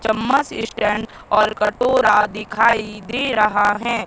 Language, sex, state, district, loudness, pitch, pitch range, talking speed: Hindi, female, Madhya Pradesh, Katni, -18 LUFS, 215 Hz, 210-235 Hz, 120 wpm